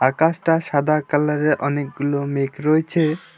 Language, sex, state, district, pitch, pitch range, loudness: Bengali, male, West Bengal, Alipurduar, 150 Hz, 145-155 Hz, -20 LUFS